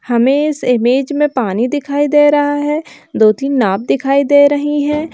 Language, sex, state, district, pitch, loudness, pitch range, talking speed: Hindi, male, Bihar, Bhagalpur, 285 Hz, -13 LUFS, 250-295 Hz, 185 wpm